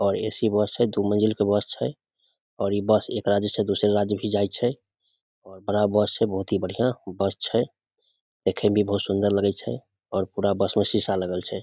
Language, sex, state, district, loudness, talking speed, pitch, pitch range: Maithili, male, Bihar, Samastipur, -24 LUFS, 220 wpm, 100 Hz, 100-105 Hz